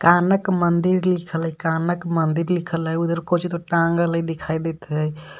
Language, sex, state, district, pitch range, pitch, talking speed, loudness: Magahi, male, Jharkhand, Palamu, 165-175 Hz, 170 Hz, 180 wpm, -21 LUFS